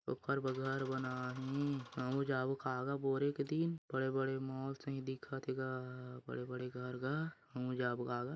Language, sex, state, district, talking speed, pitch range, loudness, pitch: Chhattisgarhi, male, Chhattisgarh, Bilaspur, 195 wpm, 125-135 Hz, -40 LUFS, 130 Hz